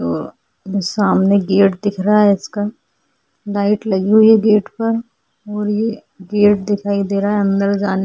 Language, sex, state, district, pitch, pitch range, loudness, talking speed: Hindi, female, Goa, North and South Goa, 205 Hz, 195-210 Hz, -16 LUFS, 165 wpm